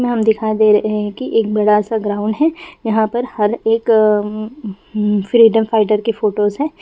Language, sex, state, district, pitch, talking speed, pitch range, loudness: Hindi, female, Bihar, Bhagalpur, 220 Hz, 185 wpm, 210-230 Hz, -15 LUFS